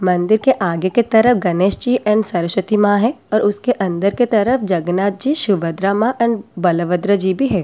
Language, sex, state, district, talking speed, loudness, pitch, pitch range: Hindi, female, Delhi, New Delhi, 195 wpm, -16 LUFS, 205 Hz, 185-235 Hz